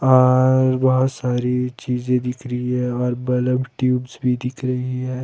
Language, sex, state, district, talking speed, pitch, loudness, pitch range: Hindi, male, Himachal Pradesh, Shimla, 170 wpm, 125 Hz, -20 LUFS, 125-130 Hz